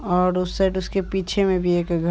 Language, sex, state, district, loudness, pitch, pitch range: Hindi, male, Bihar, Supaul, -22 LUFS, 180 Hz, 175-190 Hz